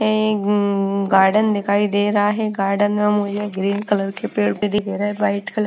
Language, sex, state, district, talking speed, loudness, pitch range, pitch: Hindi, female, Bihar, Patna, 220 wpm, -19 LUFS, 200-210 Hz, 205 Hz